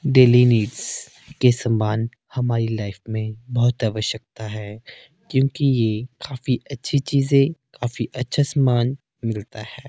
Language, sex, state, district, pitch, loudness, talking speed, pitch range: Hindi, male, Himachal Pradesh, Shimla, 120 Hz, -21 LUFS, 120 wpm, 110-135 Hz